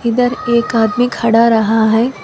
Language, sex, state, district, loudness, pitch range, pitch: Hindi, female, Telangana, Hyderabad, -13 LUFS, 225-245 Hz, 235 Hz